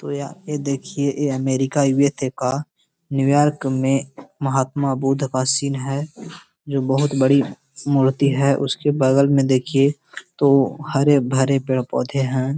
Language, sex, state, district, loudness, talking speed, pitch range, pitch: Hindi, male, Bihar, Gaya, -19 LUFS, 135 wpm, 135-145 Hz, 140 Hz